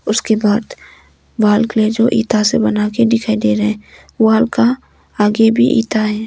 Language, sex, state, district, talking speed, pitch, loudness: Hindi, female, Arunachal Pradesh, Longding, 190 wpm, 215 Hz, -14 LUFS